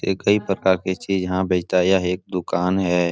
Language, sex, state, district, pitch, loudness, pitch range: Hindi, male, Bihar, Supaul, 95 Hz, -21 LUFS, 90-95 Hz